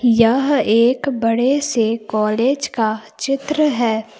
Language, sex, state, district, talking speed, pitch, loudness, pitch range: Hindi, female, Jharkhand, Palamu, 115 wpm, 235 Hz, -17 LUFS, 225-275 Hz